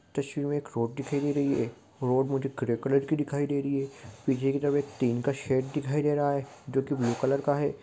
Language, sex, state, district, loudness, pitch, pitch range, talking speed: Hindi, male, West Bengal, Kolkata, -29 LUFS, 140 Hz, 130-145 Hz, 260 wpm